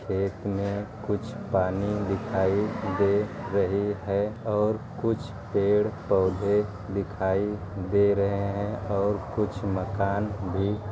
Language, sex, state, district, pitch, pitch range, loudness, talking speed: Hindi, male, Bihar, Gaya, 100 Hz, 100-105 Hz, -27 LUFS, 115 wpm